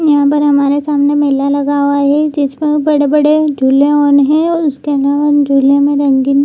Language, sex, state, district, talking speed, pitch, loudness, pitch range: Hindi, female, Bihar, Jamui, 160 wpm, 285 Hz, -11 LUFS, 280-295 Hz